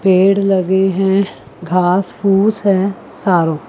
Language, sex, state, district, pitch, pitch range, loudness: Hindi, female, Chandigarh, Chandigarh, 190 Hz, 180-195 Hz, -14 LUFS